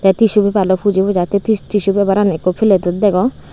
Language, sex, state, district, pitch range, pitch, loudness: Chakma, female, Tripura, Unakoti, 190-205 Hz, 200 Hz, -14 LUFS